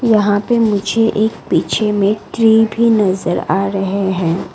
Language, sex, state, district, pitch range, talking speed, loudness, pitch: Hindi, female, Arunachal Pradesh, Lower Dibang Valley, 195-225 Hz, 160 wpm, -15 LUFS, 210 Hz